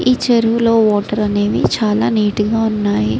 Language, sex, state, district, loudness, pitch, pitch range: Telugu, female, Andhra Pradesh, Srikakulam, -15 LUFS, 215 Hz, 205-230 Hz